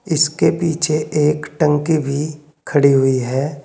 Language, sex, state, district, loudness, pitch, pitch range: Hindi, male, Uttar Pradesh, Saharanpur, -17 LUFS, 150 Hz, 140-155 Hz